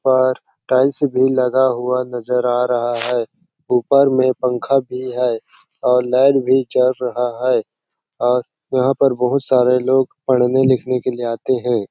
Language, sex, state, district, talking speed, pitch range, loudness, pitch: Hindi, male, Chhattisgarh, Sarguja, 150 wpm, 125-130 Hz, -17 LUFS, 125 Hz